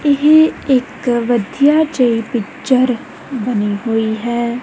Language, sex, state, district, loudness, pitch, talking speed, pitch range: Punjabi, female, Punjab, Kapurthala, -15 LUFS, 245 Hz, 105 wpm, 235-280 Hz